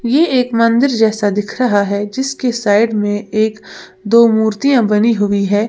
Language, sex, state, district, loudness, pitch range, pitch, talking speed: Hindi, female, Uttar Pradesh, Lalitpur, -14 LUFS, 205-235 Hz, 220 Hz, 180 wpm